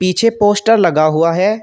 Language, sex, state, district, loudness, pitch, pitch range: Hindi, male, Uttar Pradesh, Shamli, -13 LUFS, 205 Hz, 170-220 Hz